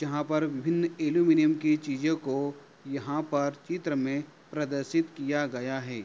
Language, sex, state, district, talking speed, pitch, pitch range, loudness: Hindi, male, Uttar Pradesh, Hamirpur, 150 wpm, 145 Hz, 140-165 Hz, -29 LUFS